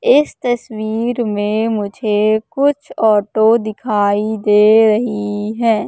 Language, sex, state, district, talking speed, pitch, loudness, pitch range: Hindi, female, Madhya Pradesh, Katni, 100 wpm, 220 Hz, -15 LUFS, 210-235 Hz